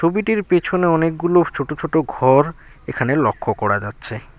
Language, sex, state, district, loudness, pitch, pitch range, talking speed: Bengali, male, West Bengal, Alipurduar, -18 LUFS, 160 Hz, 130-175 Hz, 135 wpm